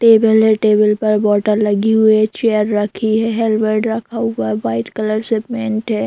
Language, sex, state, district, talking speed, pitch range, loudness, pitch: Hindi, female, Bihar, Darbhanga, 195 wpm, 210-220 Hz, -15 LUFS, 215 Hz